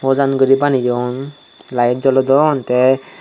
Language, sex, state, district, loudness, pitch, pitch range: Chakma, male, Tripura, Dhalai, -15 LUFS, 135 Hz, 125-135 Hz